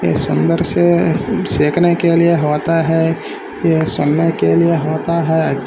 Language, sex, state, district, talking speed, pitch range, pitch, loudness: Hindi, male, Maharashtra, Solapur, 160 wpm, 155-170 Hz, 165 Hz, -14 LUFS